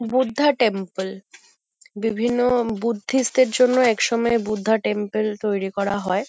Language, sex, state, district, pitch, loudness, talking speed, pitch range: Bengali, female, West Bengal, Kolkata, 225 Hz, -21 LUFS, 115 wpm, 205-245 Hz